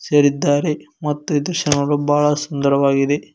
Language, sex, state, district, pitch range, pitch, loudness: Kannada, male, Karnataka, Koppal, 140-150 Hz, 145 Hz, -18 LUFS